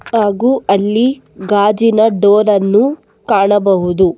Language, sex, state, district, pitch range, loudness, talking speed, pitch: Kannada, female, Karnataka, Bangalore, 195-225 Hz, -12 LUFS, 85 wpm, 205 Hz